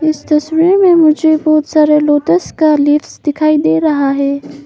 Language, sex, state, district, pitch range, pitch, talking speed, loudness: Hindi, female, Arunachal Pradesh, Papum Pare, 295-320 Hz, 305 Hz, 165 wpm, -11 LUFS